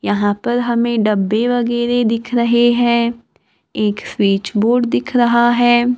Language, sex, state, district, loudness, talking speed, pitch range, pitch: Hindi, female, Maharashtra, Gondia, -15 LUFS, 140 wpm, 215-240 Hz, 235 Hz